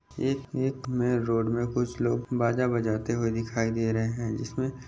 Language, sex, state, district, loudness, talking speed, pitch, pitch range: Hindi, male, Maharashtra, Aurangabad, -28 LUFS, 195 wpm, 120 Hz, 115-125 Hz